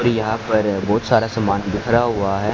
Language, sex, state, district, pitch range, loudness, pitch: Hindi, male, Haryana, Charkhi Dadri, 100-115 Hz, -19 LUFS, 110 Hz